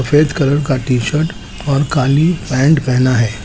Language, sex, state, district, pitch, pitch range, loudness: Hindi, male, Chandigarh, Chandigarh, 140 Hz, 130-150 Hz, -14 LUFS